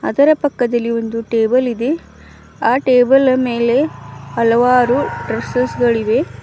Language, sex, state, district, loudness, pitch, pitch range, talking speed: Kannada, female, Karnataka, Bidar, -15 LUFS, 245 Hz, 230-260 Hz, 110 wpm